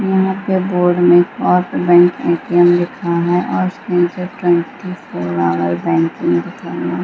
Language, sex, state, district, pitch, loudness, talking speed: Hindi, female, Bihar, Gaya, 175 Hz, -15 LUFS, 120 wpm